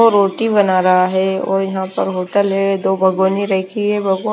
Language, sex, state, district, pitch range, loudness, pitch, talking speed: Hindi, female, Himachal Pradesh, Shimla, 190-200 Hz, -16 LUFS, 195 Hz, 180 wpm